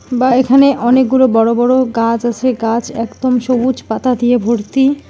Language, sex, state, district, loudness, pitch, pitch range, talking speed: Bengali, female, West Bengal, Alipurduar, -13 LUFS, 245 Hz, 235-260 Hz, 155 wpm